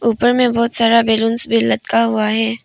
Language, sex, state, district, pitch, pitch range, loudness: Hindi, female, Arunachal Pradesh, Papum Pare, 230 Hz, 225-235 Hz, -15 LUFS